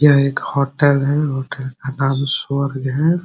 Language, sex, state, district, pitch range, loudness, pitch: Hindi, male, Bihar, Muzaffarpur, 135-145 Hz, -18 LUFS, 140 Hz